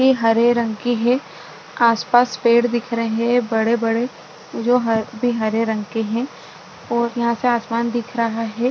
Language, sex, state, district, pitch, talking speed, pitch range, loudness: Hindi, female, Maharashtra, Aurangabad, 235 Hz, 180 wpm, 225-240 Hz, -19 LUFS